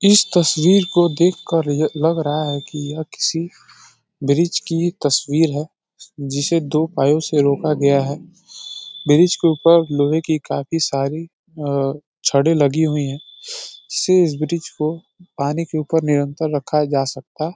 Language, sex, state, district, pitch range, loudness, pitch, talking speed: Hindi, male, Uttar Pradesh, Deoria, 145-165 Hz, -18 LUFS, 155 Hz, 155 wpm